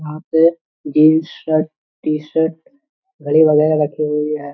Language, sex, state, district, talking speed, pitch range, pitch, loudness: Hindi, male, Bihar, Darbhanga, 130 wpm, 150-160 Hz, 155 Hz, -16 LUFS